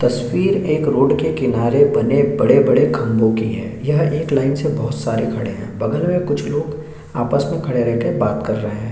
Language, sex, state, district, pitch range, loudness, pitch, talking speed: Hindi, male, Chhattisgarh, Sukma, 115-150 Hz, -17 LUFS, 125 Hz, 210 wpm